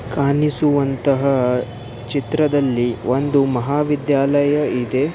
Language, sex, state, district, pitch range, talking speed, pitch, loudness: Kannada, male, Karnataka, Belgaum, 125-145 Hz, 60 wpm, 140 Hz, -18 LUFS